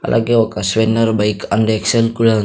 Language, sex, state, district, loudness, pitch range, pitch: Telugu, female, Andhra Pradesh, Sri Satya Sai, -15 LUFS, 110-115 Hz, 110 Hz